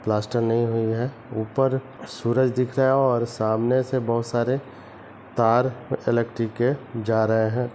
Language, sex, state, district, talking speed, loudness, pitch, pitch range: Hindi, male, Chhattisgarh, Bilaspur, 155 wpm, -23 LUFS, 120 Hz, 115-130 Hz